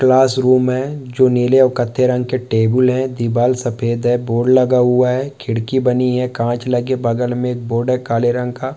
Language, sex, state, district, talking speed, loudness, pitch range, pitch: Hindi, male, West Bengal, Purulia, 205 wpm, -16 LUFS, 120-130 Hz, 125 Hz